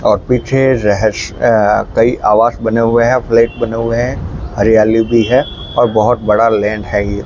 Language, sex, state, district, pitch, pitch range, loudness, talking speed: Hindi, male, Rajasthan, Bikaner, 115 Hz, 105-120 Hz, -12 LUFS, 180 wpm